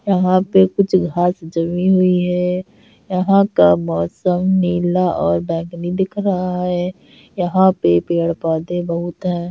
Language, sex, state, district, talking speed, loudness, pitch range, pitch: Hindi, female, Bihar, Kishanganj, 130 wpm, -17 LUFS, 170-185 Hz, 180 Hz